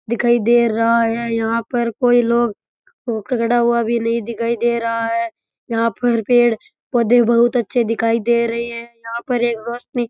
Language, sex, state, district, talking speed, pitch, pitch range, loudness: Rajasthani, male, Rajasthan, Churu, 190 wpm, 235 Hz, 230-240 Hz, -18 LUFS